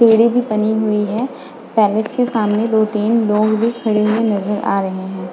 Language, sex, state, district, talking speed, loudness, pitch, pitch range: Hindi, female, Goa, North and South Goa, 180 wpm, -16 LUFS, 215 Hz, 210-230 Hz